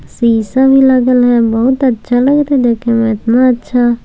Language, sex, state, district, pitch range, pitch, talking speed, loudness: Maithili, female, Bihar, Samastipur, 235-260 Hz, 245 Hz, 190 wpm, -11 LUFS